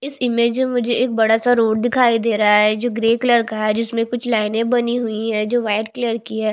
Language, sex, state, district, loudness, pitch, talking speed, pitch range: Hindi, female, Chhattisgarh, Bastar, -18 LUFS, 230 Hz, 250 wpm, 220-245 Hz